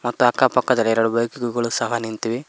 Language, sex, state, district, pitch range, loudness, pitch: Kannada, male, Karnataka, Koppal, 115-125 Hz, -20 LUFS, 120 Hz